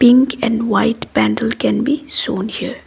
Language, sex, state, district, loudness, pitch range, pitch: English, female, Assam, Kamrup Metropolitan, -16 LUFS, 225-265 Hz, 240 Hz